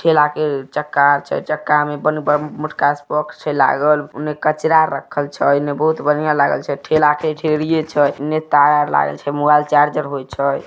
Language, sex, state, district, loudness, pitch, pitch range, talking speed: Maithili, male, Bihar, Samastipur, -17 LUFS, 150 Hz, 145-155 Hz, 195 wpm